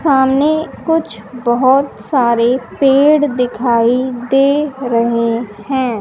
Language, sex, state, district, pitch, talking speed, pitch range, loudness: Hindi, female, Haryana, Jhajjar, 260 Hz, 90 wpm, 235-280 Hz, -14 LUFS